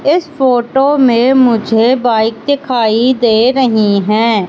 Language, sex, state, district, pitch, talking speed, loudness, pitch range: Hindi, female, Madhya Pradesh, Katni, 240 Hz, 120 wpm, -11 LUFS, 225-265 Hz